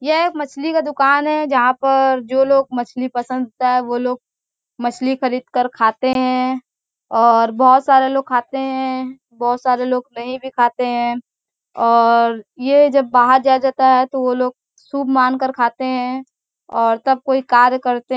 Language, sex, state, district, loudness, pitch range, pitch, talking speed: Hindi, female, Uttar Pradesh, Varanasi, -16 LUFS, 245-265 Hz, 255 Hz, 180 wpm